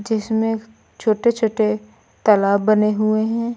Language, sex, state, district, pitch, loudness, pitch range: Hindi, female, Uttar Pradesh, Lucknow, 215 Hz, -19 LUFS, 215-225 Hz